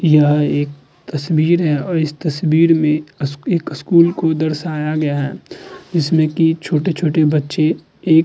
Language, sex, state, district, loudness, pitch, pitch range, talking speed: Hindi, female, Uttar Pradesh, Hamirpur, -16 LUFS, 155 Hz, 150-165 Hz, 155 wpm